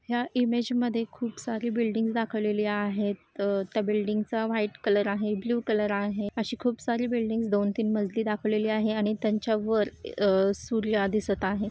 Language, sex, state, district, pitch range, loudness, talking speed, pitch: Marathi, female, Maharashtra, Solapur, 205-230 Hz, -28 LUFS, 170 wpm, 215 Hz